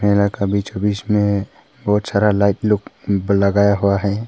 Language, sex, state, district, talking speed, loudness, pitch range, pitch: Hindi, male, Arunachal Pradesh, Papum Pare, 170 wpm, -18 LUFS, 100-105 Hz, 100 Hz